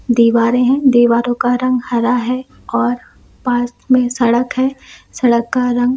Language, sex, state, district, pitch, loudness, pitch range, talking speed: Hindi, female, Jharkhand, Sahebganj, 245 Hz, -15 LUFS, 235-255 Hz, 150 wpm